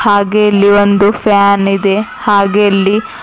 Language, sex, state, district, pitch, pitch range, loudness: Kannada, female, Karnataka, Bidar, 205 Hz, 200-205 Hz, -10 LUFS